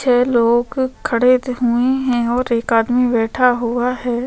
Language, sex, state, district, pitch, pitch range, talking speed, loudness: Hindi, female, Chhattisgarh, Sukma, 245 Hz, 235-255 Hz, 155 wpm, -16 LUFS